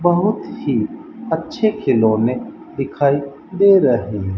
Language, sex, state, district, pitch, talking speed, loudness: Hindi, male, Rajasthan, Bikaner, 140 Hz, 95 wpm, -18 LUFS